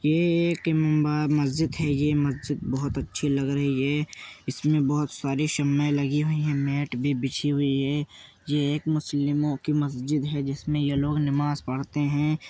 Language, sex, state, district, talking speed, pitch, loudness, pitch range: Hindi, male, Uttar Pradesh, Jyotiba Phule Nagar, 175 wpm, 145 Hz, -26 LUFS, 140-150 Hz